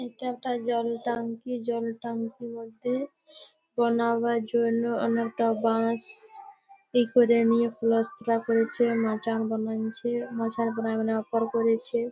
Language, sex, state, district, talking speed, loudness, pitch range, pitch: Bengali, female, West Bengal, Malda, 115 wpm, -27 LUFS, 230-240 Hz, 235 Hz